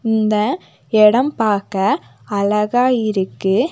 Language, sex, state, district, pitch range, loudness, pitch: Tamil, female, Tamil Nadu, Nilgiris, 205-245 Hz, -17 LUFS, 215 Hz